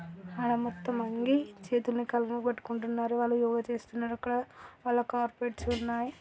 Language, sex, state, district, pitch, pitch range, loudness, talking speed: Telugu, female, Andhra Pradesh, Krishna, 240 Hz, 235-240 Hz, -32 LUFS, 135 wpm